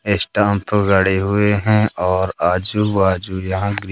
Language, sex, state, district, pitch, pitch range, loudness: Hindi, male, Madhya Pradesh, Katni, 100 Hz, 95-105 Hz, -17 LUFS